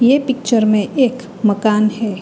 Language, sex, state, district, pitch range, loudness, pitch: Hindi, female, Uttar Pradesh, Hamirpur, 210-250 Hz, -15 LUFS, 220 Hz